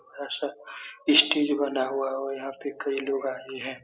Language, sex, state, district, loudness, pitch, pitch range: Hindi, male, Bihar, Supaul, -26 LUFS, 135 Hz, 135-145 Hz